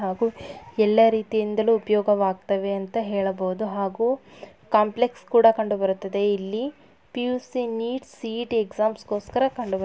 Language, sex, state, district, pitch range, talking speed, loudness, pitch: Kannada, female, Karnataka, Dharwad, 200-230 Hz, 115 wpm, -24 LUFS, 220 Hz